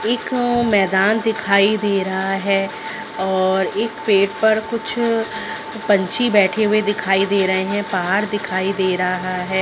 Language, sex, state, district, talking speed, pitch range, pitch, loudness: Hindi, female, Chhattisgarh, Raigarh, 145 wpm, 190-220 Hz, 200 Hz, -18 LUFS